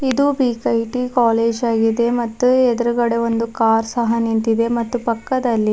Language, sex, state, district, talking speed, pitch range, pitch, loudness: Kannada, female, Karnataka, Bidar, 135 wpm, 230-245 Hz, 235 Hz, -18 LUFS